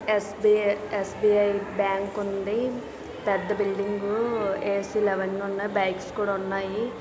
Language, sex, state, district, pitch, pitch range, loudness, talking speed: Telugu, female, Andhra Pradesh, Visakhapatnam, 205 Hz, 195-210 Hz, -26 LUFS, 110 wpm